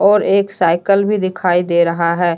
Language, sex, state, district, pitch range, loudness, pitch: Hindi, female, Jharkhand, Deoghar, 170-200 Hz, -15 LUFS, 185 Hz